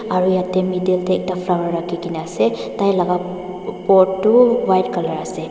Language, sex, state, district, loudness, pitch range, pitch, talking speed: Nagamese, female, Nagaland, Dimapur, -18 LUFS, 175-185 Hz, 185 Hz, 175 wpm